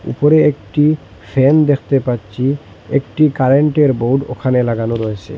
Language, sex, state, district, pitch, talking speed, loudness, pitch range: Bengali, male, Assam, Hailakandi, 135 Hz, 120 wpm, -15 LUFS, 115-145 Hz